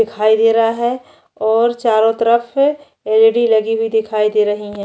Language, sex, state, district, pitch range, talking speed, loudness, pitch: Hindi, female, Chhattisgarh, Jashpur, 215-235 Hz, 175 wpm, -15 LUFS, 225 Hz